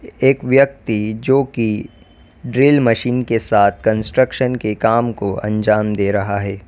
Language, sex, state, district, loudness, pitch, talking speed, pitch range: Hindi, female, Uttar Pradesh, Lalitpur, -16 LUFS, 110 Hz, 145 wpm, 105-125 Hz